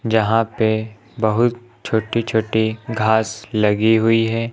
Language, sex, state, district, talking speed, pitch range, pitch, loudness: Hindi, male, Uttar Pradesh, Lucknow, 120 wpm, 110-115 Hz, 110 Hz, -18 LUFS